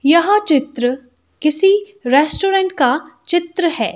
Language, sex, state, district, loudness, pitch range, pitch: Hindi, female, Himachal Pradesh, Shimla, -15 LUFS, 265-380 Hz, 310 Hz